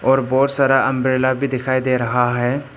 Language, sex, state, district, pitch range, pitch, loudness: Hindi, male, Arunachal Pradesh, Papum Pare, 130-135 Hz, 130 Hz, -17 LUFS